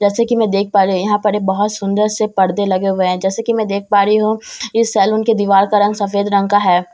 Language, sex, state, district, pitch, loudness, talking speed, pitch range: Hindi, female, Bihar, Katihar, 205 Hz, -15 LUFS, 295 wpm, 195-215 Hz